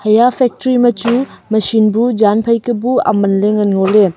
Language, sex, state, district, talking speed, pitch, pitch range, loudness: Wancho, female, Arunachal Pradesh, Longding, 200 wpm, 225 Hz, 210-240 Hz, -13 LUFS